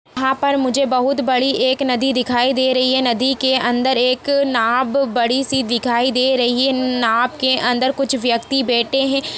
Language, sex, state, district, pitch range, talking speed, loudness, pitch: Hindi, female, Chhattisgarh, Jashpur, 245-270 Hz, 185 wpm, -17 LUFS, 260 Hz